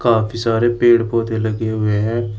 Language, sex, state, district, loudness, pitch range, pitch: Hindi, male, Uttar Pradesh, Shamli, -17 LUFS, 110-120 Hz, 115 Hz